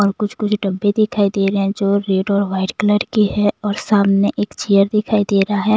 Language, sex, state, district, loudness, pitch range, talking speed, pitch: Hindi, female, Punjab, Kapurthala, -17 LUFS, 195-210 Hz, 240 wpm, 205 Hz